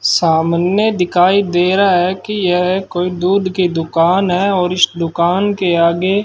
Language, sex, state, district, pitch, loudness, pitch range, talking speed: Hindi, male, Rajasthan, Bikaner, 180 Hz, -14 LUFS, 175-190 Hz, 170 wpm